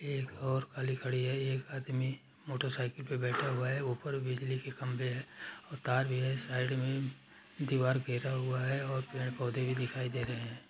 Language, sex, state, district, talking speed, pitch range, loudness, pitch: Hindi, male, Uttar Pradesh, Etah, 185 wpm, 125-135 Hz, -36 LUFS, 130 Hz